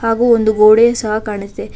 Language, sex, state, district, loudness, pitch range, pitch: Kannada, female, Karnataka, Bangalore, -12 LUFS, 210-230 Hz, 215 Hz